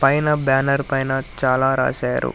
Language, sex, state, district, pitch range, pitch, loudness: Telugu, male, Telangana, Hyderabad, 130-140 Hz, 135 Hz, -19 LUFS